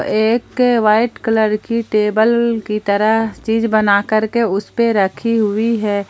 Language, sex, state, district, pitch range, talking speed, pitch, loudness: Hindi, female, Jharkhand, Palamu, 210-230 Hz, 150 wpm, 220 Hz, -15 LUFS